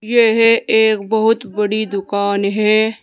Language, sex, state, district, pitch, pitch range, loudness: Hindi, female, Uttar Pradesh, Saharanpur, 215 Hz, 205-225 Hz, -15 LUFS